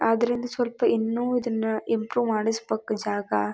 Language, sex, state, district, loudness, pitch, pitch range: Kannada, female, Karnataka, Dharwad, -26 LUFS, 225 Hz, 220-240 Hz